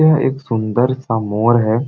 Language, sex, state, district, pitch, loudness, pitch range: Sadri, male, Chhattisgarh, Jashpur, 120 Hz, -16 LUFS, 110-130 Hz